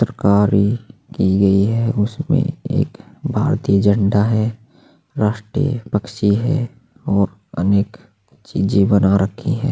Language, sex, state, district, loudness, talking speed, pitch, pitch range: Hindi, male, Chhattisgarh, Sukma, -18 LUFS, 110 wpm, 110 Hz, 100-135 Hz